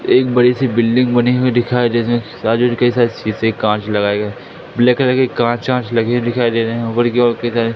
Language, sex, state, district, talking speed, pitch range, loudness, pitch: Hindi, male, Madhya Pradesh, Katni, 230 wpm, 115-125 Hz, -15 LUFS, 120 Hz